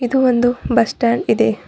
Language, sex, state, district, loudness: Kannada, female, Karnataka, Bidar, -16 LUFS